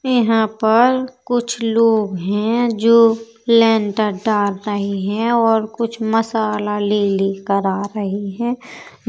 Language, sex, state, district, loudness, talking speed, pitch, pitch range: Bundeli, female, Uttar Pradesh, Jalaun, -17 LUFS, 125 wpm, 220 Hz, 205-230 Hz